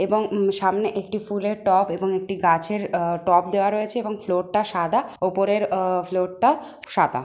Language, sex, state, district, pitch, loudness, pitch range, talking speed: Bengali, female, West Bengal, Jalpaiguri, 195 Hz, -22 LUFS, 185-210 Hz, 180 wpm